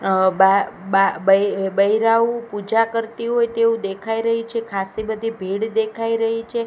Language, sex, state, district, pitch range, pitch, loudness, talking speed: Gujarati, female, Gujarat, Gandhinagar, 195-230 Hz, 220 Hz, -19 LUFS, 160 wpm